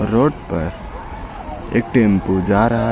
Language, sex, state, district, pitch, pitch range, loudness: Hindi, male, Uttar Pradesh, Lucknow, 115 Hz, 95-115 Hz, -17 LUFS